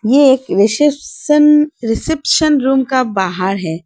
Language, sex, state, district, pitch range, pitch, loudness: Hindi, female, Arunachal Pradesh, Lower Dibang Valley, 205-295 Hz, 265 Hz, -13 LUFS